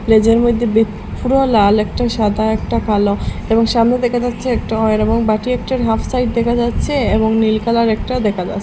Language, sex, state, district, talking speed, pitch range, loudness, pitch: Bengali, female, Assam, Hailakandi, 190 wpm, 215-240 Hz, -15 LUFS, 225 Hz